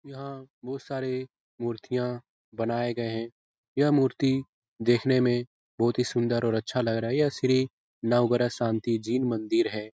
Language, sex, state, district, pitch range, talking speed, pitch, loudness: Hindi, male, Bihar, Jahanabad, 115-130 Hz, 155 wpm, 120 Hz, -27 LUFS